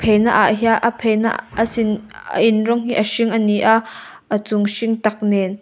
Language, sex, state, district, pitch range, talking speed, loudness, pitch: Mizo, female, Mizoram, Aizawl, 210-225 Hz, 170 wpm, -17 LUFS, 220 Hz